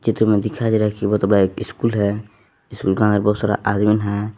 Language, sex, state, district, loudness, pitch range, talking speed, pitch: Hindi, male, Jharkhand, Palamu, -19 LUFS, 100-110 Hz, 260 wpm, 105 Hz